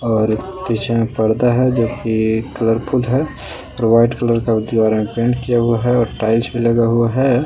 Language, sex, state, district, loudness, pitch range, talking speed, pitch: Hindi, male, Jharkhand, Palamu, -16 LUFS, 110-120 Hz, 185 wpm, 115 Hz